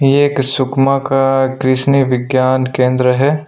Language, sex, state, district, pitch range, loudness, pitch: Hindi, male, Chhattisgarh, Sukma, 130-135 Hz, -13 LUFS, 135 Hz